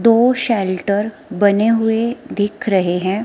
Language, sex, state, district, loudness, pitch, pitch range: Hindi, female, Himachal Pradesh, Shimla, -17 LUFS, 215 Hz, 200-230 Hz